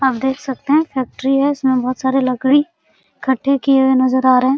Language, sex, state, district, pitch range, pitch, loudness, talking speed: Hindi, female, Bihar, Araria, 260-275 Hz, 265 Hz, -16 LUFS, 220 wpm